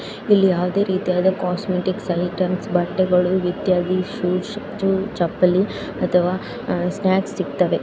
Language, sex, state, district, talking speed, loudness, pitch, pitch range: Kannada, female, Karnataka, Dakshina Kannada, 90 wpm, -20 LUFS, 185 Hz, 180-190 Hz